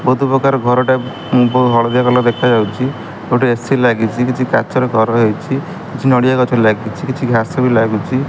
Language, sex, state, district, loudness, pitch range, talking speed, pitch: Odia, male, Odisha, Khordha, -14 LUFS, 115-130 Hz, 165 wpm, 125 Hz